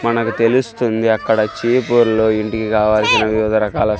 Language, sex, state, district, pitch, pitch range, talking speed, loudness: Telugu, male, Andhra Pradesh, Sri Satya Sai, 110 Hz, 110-115 Hz, 120 wpm, -15 LUFS